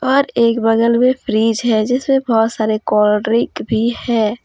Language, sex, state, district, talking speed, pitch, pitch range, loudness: Hindi, female, Jharkhand, Deoghar, 205 wpm, 230 Hz, 220-245 Hz, -15 LUFS